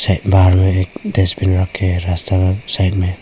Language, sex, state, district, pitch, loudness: Hindi, male, Arunachal Pradesh, Papum Pare, 95 Hz, -15 LUFS